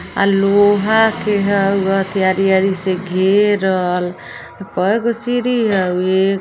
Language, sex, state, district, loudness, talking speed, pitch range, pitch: Bajjika, female, Bihar, Vaishali, -15 LUFS, 120 wpm, 190-205 Hz, 195 Hz